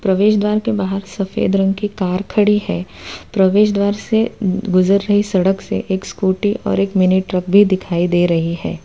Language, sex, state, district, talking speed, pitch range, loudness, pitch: Hindi, female, Gujarat, Valsad, 190 wpm, 185-205 Hz, -16 LUFS, 195 Hz